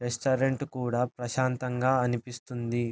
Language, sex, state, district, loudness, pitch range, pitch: Telugu, male, Andhra Pradesh, Anantapur, -29 LUFS, 120-130 Hz, 125 Hz